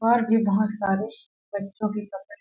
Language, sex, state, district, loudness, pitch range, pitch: Hindi, female, Chhattisgarh, Sarguja, -25 LUFS, 200-225 Hz, 210 Hz